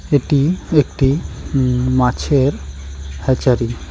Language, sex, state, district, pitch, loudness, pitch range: Bengali, male, West Bengal, Cooch Behar, 130 Hz, -17 LUFS, 115-140 Hz